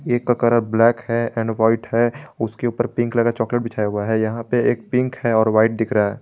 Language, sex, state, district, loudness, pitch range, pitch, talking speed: Hindi, male, Jharkhand, Garhwa, -19 LUFS, 110-120 Hz, 115 Hz, 250 wpm